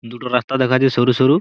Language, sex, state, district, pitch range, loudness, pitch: Bengali, male, West Bengal, Purulia, 125-130 Hz, -17 LUFS, 125 Hz